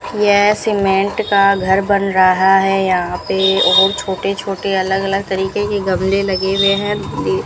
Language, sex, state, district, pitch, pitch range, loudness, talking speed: Hindi, female, Rajasthan, Bikaner, 195 Hz, 190-200 Hz, -15 LUFS, 175 wpm